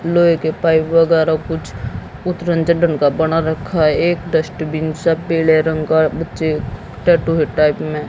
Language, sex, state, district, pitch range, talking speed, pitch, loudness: Hindi, female, Haryana, Jhajjar, 155-165 Hz, 165 wpm, 160 Hz, -16 LUFS